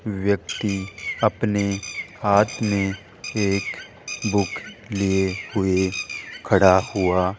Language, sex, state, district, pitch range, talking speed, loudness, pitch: Hindi, male, Rajasthan, Jaipur, 95-105 Hz, 90 wpm, -22 LUFS, 100 Hz